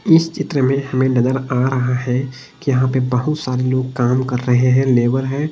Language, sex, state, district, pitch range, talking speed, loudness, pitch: Hindi, male, Bihar, Patna, 125-135 Hz, 215 wpm, -17 LUFS, 130 Hz